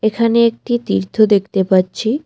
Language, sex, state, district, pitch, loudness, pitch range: Bengali, female, West Bengal, Cooch Behar, 220 Hz, -15 LUFS, 195-235 Hz